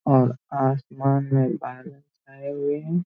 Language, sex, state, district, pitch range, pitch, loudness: Hindi, male, Bihar, Gaya, 135-145 Hz, 135 Hz, -24 LUFS